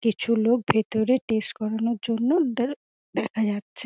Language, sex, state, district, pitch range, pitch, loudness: Bengali, female, West Bengal, Dakshin Dinajpur, 220-245 Hz, 230 Hz, -25 LUFS